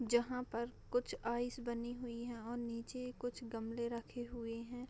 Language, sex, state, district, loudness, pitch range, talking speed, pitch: Hindi, female, Bihar, Madhepura, -42 LUFS, 235-245 Hz, 185 wpm, 240 Hz